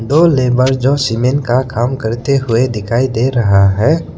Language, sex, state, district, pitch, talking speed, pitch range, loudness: Hindi, male, Arunachal Pradesh, Lower Dibang Valley, 125 Hz, 170 wpm, 115-135 Hz, -13 LUFS